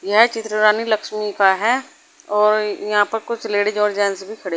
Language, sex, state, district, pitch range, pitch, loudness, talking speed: Hindi, female, Uttar Pradesh, Saharanpur, 205-220 Hz, 210 Hz, -18 LUFS, 195 wpm